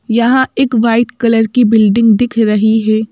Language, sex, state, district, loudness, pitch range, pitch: Hindi, female, Madhya Pradesh, Bhopal, -11 LUFS, 220-240 Hz, 230 Hz